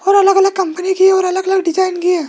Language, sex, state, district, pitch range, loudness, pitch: Hindi, male, Rajasthan, Jaipur, 360-385 Hz, -13 LUFS, 375 Hz